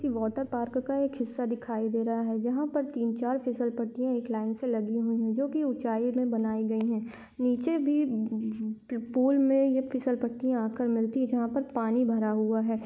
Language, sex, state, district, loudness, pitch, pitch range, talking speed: Hindi, female, Maharashtra, Dhule, -29 LUFS, 240 Hz, 225-260 Hz, 210 wpm